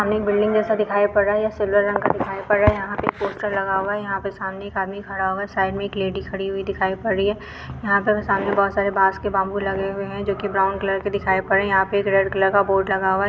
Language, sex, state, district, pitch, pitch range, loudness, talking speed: Hindi, female, Maharashtra, Chandrapur, 200 Hz, 195-205 Hz, -21 LUFS, 285 wpm